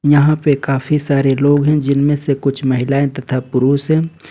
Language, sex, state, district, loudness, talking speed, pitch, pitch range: Hindi, male, Jharkhand, Ranchi, -15 LUFS, 180 wpm, 140 Hz, 135-150 Hz